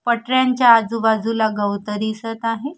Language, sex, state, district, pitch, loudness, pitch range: Marathi, female, Maharashtra, Gondia, 225 Hz, -18 LUFS, 220-240 Hz